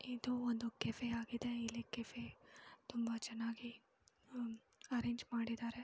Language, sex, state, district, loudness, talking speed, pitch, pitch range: Kannada, female, Karnataka, Mysore, -44 LUFS, 105 wpm, 235 Hz, 230-245 Hz